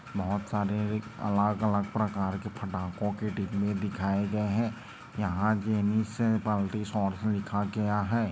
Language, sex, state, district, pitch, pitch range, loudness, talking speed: Hindi, male, Maharashtra, Dhule, 105 Hz, 100-105 Hz, -30 LUFS, 130 wpm